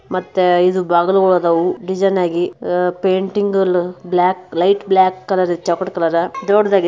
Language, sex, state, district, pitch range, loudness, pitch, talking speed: Kannada, female, Karnataka, Bijapur, 180-190 Hz, -16 LUFS, 185 Hz, 115 wpm